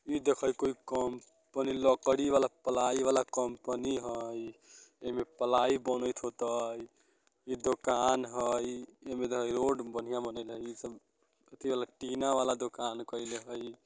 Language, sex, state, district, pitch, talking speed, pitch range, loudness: Bajjika, male, Bihar, Vaishali, 125 Hz, 145 wpm, 120-130 Hz, -33 LUFS